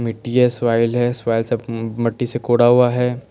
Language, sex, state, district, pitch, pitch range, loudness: Hindi, male, Chandigarh, Chandigarh, 120 Hz, 115-125 Hz, -18 LUFS